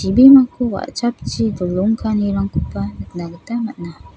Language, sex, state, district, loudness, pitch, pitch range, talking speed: Garo, female, Meghalaya, South Garo Hills, -16 LUFS, 195 Hz, 165-230 Hz, 85 wpm